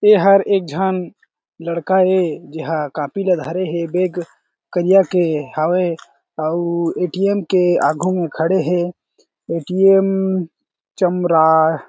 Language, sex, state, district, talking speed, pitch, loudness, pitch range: Chhattisgarhi, male, Chhattisgarh, Jashpur, 120 wpm, 175 Hz, -17 LUFS, 165-185 Hz